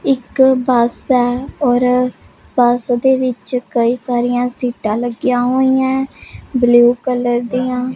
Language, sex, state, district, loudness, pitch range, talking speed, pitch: Punjabi, female, Punjab, Pathankot, -15 LUFS, 245-260 Hz, 130 wpm, 250 Hz